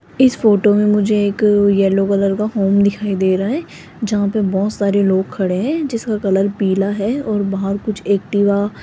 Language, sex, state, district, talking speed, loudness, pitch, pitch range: Hindi, female, Rajasthan, Jaipur, 195 wpm, -16 LUFS, 200 Hz, 195-210 Hz